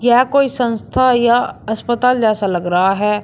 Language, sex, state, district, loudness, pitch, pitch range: Hindi, male, Uttar Pradesh, Shamli, -15 LUFS, 235 Hz, 210-250 Hz